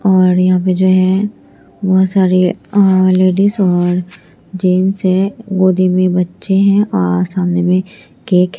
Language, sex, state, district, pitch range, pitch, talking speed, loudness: Hindi, female, Bihar, Katihar, 180-190 Hz, 185 Hz, 145 wpm, -13 LUFS